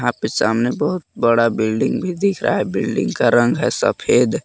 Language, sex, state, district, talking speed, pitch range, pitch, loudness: Hindi, male, Jharkhand, Palamu, 190 wpm, 110-180 Hz, 115 Hz, -18 LUFS